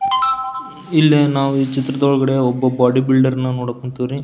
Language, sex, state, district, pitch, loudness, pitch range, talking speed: Kannada, male, Karnataka, Belgaum, 135 Hz, -16 LUFS, 130-150 Hz, 140 wpm